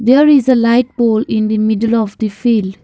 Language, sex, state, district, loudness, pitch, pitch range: English, female, Assam, Kamrup Metropolitan, -13 LUFS, 230 Hz, 215-245 Hz